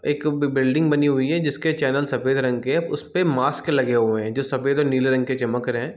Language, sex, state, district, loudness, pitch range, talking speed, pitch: Hindi, male, Chhattisgarh, Bilaspur, -21 LUFS, 130-145 Hz, 250 wpm, 135 Hz